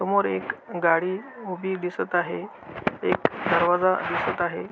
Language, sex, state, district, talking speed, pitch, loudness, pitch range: Marathi, male, Maharashtra, Aurangabad, 125 wpm, 180 Hz, -25 LUFS, 175-190 Hz